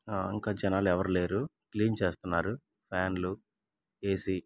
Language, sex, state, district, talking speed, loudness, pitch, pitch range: Telugu, male, Andhra Pradesh, Guntur, 120 wpm, -32 LUFS, 95 Hz, 90-105 Hz